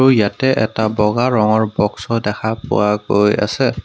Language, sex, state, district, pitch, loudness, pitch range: Assamese, male, Assam, Kamrup Metropolitan, 110 Hz, -16 LUFS, 105-115 Hz